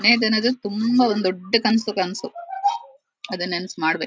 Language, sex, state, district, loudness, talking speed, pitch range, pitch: Kannada, female, Karnataka, Shimoga, -21 LUFS, 160 wpm, 185-245 Hz, 220 Hz